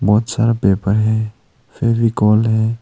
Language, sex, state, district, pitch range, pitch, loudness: Hindi, male, Arunachal Pradesh, Longding, 105-115 Hz, 110 Hz, -16 LUFS